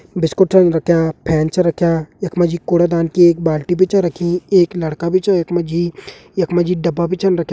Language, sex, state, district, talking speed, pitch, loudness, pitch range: Garhwali, male, Uttarakhand, Uttarkashi, 225 wpm, 175 Hz, -16 LUFS, 170-180 Hz